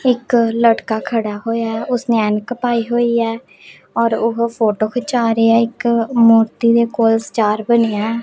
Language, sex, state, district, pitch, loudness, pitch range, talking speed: Punjabi, female, Punjab, Pathankot, 230 Hz, -16 LUFS, 225-235 Hz, 160 wpm